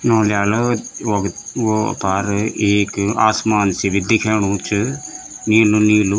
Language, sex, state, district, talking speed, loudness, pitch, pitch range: Garhwali, male, Uttarakhand, Tehri Garhwal, 125 wpm, -17 LUFS, 105 Hz, 100-110 Hz